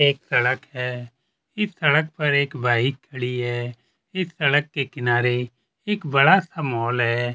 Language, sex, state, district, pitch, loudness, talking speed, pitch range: Hindi, male, Chhattisgarh, Kabirdham, 135 Hz, -22 LUFS, 155 wpm, 120-150 Hz